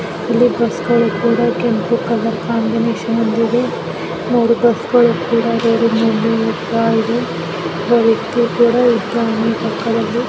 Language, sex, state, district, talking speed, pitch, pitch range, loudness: Kannada, female, Karnataka, Mysore, 105 wpm, 230 Hz, 225-235 Hz, -15 LUFS